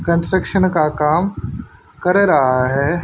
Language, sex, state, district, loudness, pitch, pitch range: Hindi, male, Haryana, Charkhi Dadri, -16 LUFS, 170 Hz, 150-185 Hz